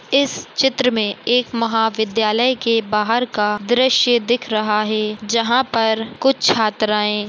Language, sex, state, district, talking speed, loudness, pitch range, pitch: Hindi, female, Maharashtra, Nagpur, 130 wpm, -17 LUFS, 215-245 Hz, 225 Hz